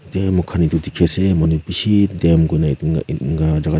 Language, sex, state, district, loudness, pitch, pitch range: Nagamese, male, Nagaland, Kohima, -17 LUFS, 85 Hz, 80-95 Hz